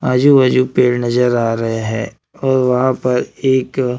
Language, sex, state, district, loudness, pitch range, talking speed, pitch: Hindi, male, Maharashtra, Gondia, -15 LUFS, 120-130 Hz, 165 wpm, 125 Hz